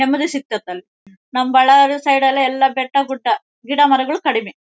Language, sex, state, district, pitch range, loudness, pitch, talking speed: Kannada, female, Karnataka, Bellary, 255-275 Hz, -16 LUFS, 270 Hz, 170 wpm